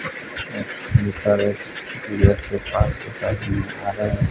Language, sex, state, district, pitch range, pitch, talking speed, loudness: Hindi, male, Odisha, Sambalpur, 100-105 Hz, 100 Hz, 85 wpm, -23 LUFS